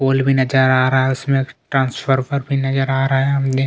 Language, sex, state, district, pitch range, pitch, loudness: Hindi, male, Chhattisgarh, Kabirdham, 130-135 Hz, 135 Hz, -17 LUFS